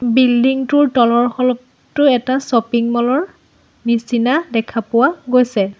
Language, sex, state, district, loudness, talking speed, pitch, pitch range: Assamese, female, Assam, Sonitpur, -15 LUFS, 125 wpm, 250 Hz, 235-265 Hz